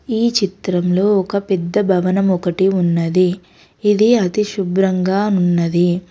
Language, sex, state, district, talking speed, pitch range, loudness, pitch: Telugu, female, Telangana, Hyderabad, 110 wpm, 180-200 Hz, -16 LUFS, 190 Hz